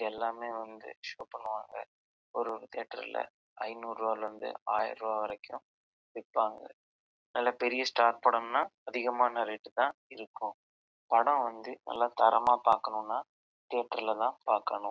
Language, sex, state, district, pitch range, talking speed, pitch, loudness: Tamil, male, Karnataka, Chamarajanagar, 110-120 Hz, 120 wpm, 115 Hz, -32 LUFS